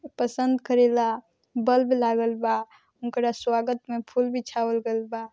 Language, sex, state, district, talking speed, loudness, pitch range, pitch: Bhojpuri, female, Bihar, East Champaran, 135 wpm, -25 LUFS, 230-250 Hz, 235 Hz